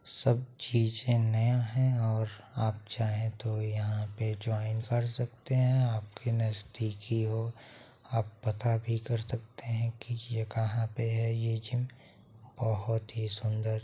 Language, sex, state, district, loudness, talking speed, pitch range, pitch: Hindi, male, Bihar, Saharsa, -32 LUFS, 145 wpm, 110-120 Hz, 115 Hz